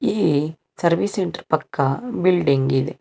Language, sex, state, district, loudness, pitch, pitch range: Kannada, male, Karnataka, Bangalore, -21 LUFS, 160 Hz, 140-185 Hz